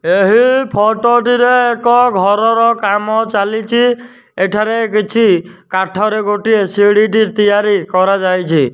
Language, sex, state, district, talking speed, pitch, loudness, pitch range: Odia, male, Odisha, Nuapada, 95 wpm, 215 Hz, -12 LUFS, 200-235 Hz